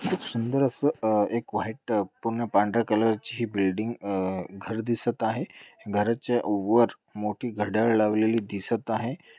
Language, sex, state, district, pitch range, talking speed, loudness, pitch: Marathi, male, Maharashtra, Dhule, 105-120 Hz, 145 wpm, -27 LUFS, 115 Hz